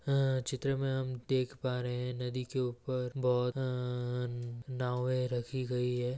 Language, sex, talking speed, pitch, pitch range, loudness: Maithili, female, 155 wpm, 125 Hz, 125-130 Hz, -35 LUFS